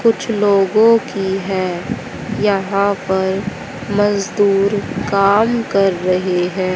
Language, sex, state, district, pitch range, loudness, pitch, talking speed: Hindi, female, Haryana, Jhajjar, 190-205 Hz, -16 LUFS, 200 Hz, 95 wpm